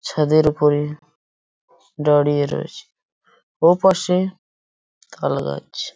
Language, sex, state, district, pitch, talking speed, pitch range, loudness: Bengali, male, West Bengal, Purulia, 150 Hz, 60 wpm, 145-170 Hz, -19 LUFS